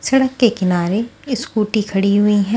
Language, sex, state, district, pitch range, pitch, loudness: Hindi, female, Delhi, New Delhi, 200-240 Hz, 215 Hz, -17 LUFS